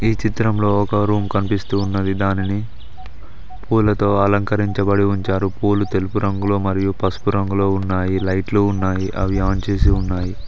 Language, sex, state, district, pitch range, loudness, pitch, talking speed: Telugu, male, Telangana, Mahabubabad, 95-100 Hz, -19 LUFS, 100 Hz, 130 wpm